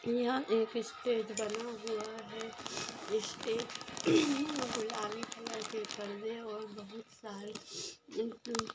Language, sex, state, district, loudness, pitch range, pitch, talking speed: Hindi, female, Maharashtra, Nagpur, -37 LUFS, 215-240 Hz, 225 Hz, 105 wpm